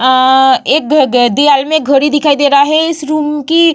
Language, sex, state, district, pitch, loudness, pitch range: Hindi, female, Bihar, Vaishali, 290 Hz, -10 LUFS, 270-305 Hz